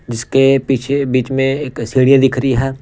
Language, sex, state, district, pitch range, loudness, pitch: Hindi, male, Punjab, Pathankot, 130-135 Hz, -14 LUFS, 135 Hz